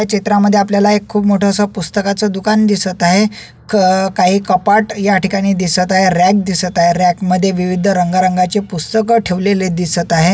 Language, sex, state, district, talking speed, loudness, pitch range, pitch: Marathi, male, Maharashtra, Solapur, 175 wpm, -13 LUFS, 180-205 Hz, 195 Hz